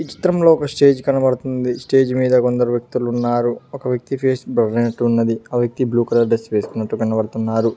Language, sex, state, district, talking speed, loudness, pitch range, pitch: Telugu, male, Telangana, Mahabubabad, 175 wpm, -18 LUFS, 115-130 Hz, 120 Hz